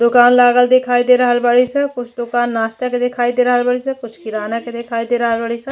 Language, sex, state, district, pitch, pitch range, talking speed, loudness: Bhojpuri, female, Uttar Pradesh, Ghazipur, 245 Hz, 235-250 Hz, 230 wpm, -15 LUFS